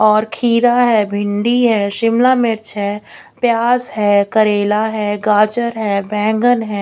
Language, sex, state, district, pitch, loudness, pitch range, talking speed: Hindi, female, Chandigarh, Chandigarh, 215 Hz, -15 LUFS, 205-235 Hz, 140 wpm